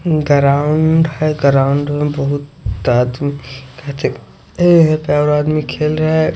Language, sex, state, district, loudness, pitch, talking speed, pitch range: Hindi, male, Odisha, Sambalpur, -14 LUFS, 145 Hz, 85 wpm, 140-155 Hz